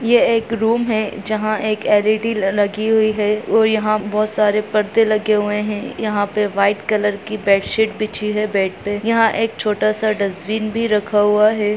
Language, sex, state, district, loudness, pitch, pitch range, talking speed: Hindi, male, Bihar, Muzaffarpur, -17 LUFS, 215 Hz, 210-220 Hz, 185 wpm